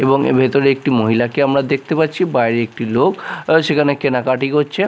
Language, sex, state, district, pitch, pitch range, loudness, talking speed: Bengali, male, Odisha, Nuapada, 140 Hz, 130-150 Hz, -16 LUFS, 170 wpm